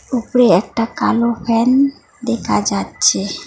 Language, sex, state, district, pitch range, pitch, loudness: Bengali, female, West Bengal, Alipurduar, 230-250 Hz, 235 Hz, -16 LUFS